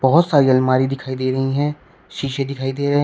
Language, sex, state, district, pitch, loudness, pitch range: Hindi, male, Uttar Pradesh, Shamli, 135 Hz, -19 LUFS, 130-145 Hz